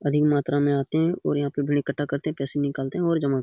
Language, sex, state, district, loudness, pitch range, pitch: Hindi, male, Bihar, Jamui, -24 LUFS, 140-150 Hz, 145 Hz